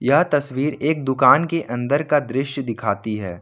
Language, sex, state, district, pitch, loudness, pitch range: Hindi, male, Jharkhand, Ranchi, 135 Hz, -20 LUFS, 120-150 Hz